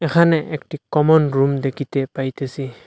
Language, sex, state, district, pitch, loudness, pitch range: Bengali, male, Assam, Hailakandi, 140 Hz, -19 LUFS, 135-155 Hz